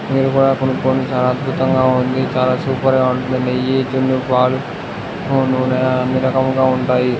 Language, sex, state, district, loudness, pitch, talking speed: Telugu, male, Karnataka, Gulbarga, -16 LUFS, 130 Hz, 110 wpm